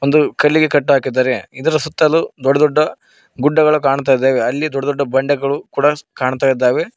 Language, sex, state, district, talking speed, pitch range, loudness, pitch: Kannada, male, Karnataka, Koppal, 145 wpm, 135-150 Hz, -15 LUFS, 140 Hz